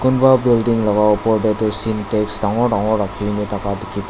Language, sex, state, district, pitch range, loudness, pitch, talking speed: Nagamese, male, Nagaland, Dimapur, 105-115 Hz, -16 LUFS, 110 Hz, 190 wpm